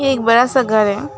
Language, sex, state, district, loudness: Hindi, female, West Bengal, Alipurduar, -14 LUFS